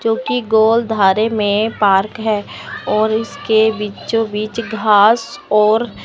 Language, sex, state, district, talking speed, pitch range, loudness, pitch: Hindi, male, Chandigarh, Chandigarh, 120 wpm, 210-225 Hz, -15 LUFS, 220 Hz